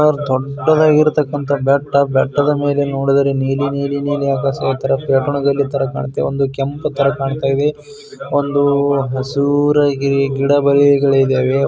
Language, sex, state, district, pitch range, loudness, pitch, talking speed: Kannada, male, Karnataka, Bijapur, 135-145 Hz, -15 LUFS, 140 Hz, 120 wpm